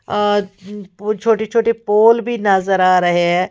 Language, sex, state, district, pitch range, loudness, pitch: Hindi, female, Uttar Pradesh, Lalitpur, 190-225 Hz, -15 LUFS, 205 Hz